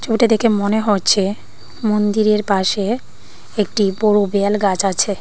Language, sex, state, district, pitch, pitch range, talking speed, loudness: Bengali, female, Tripura, Dhalai, 210 Hz, 200-215 Hz, 125 wpm, -17 LUFS